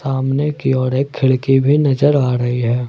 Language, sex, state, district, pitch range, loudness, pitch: Hindi, male, Jharkhand, Ranchi, 130-140 Hz, -16 LUFS, 135 Hz